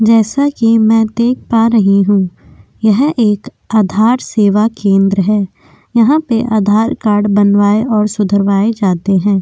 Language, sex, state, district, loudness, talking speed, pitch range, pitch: Hindi, female, Uttar Pradesh, Jyotiba Phule Nagar, -12 LUFS, 140 wpm, 200-230 Hz, 215 Hz